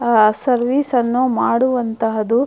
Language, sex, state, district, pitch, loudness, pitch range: Kannada, female, Karnataka, Mysore, 240 Hz, -16 LUFS, 225-255 Hz